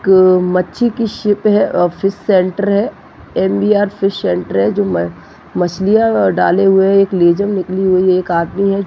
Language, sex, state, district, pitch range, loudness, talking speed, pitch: Hindi, female, Chhattisgarh, Jashpur, 180-200 Hz, -14 LUFS, 170 wpm, 195 Hz